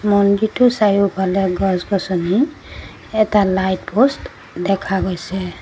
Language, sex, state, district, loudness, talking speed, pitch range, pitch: Assamese, female, Assam, Sonitpur, -17 LUFS, 85 wpm, 190-210 Hz, 195 Hz